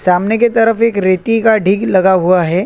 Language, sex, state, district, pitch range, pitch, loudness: Hindi, male, Chhattisgarh, Korba, 185-225 Hz, 195 Hz, -12 LUFS